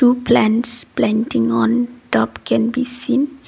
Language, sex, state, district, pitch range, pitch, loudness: English, female, Assam, Kamrup Metropolitan, 215-250 Hz, 240 Hz, -17 LUFS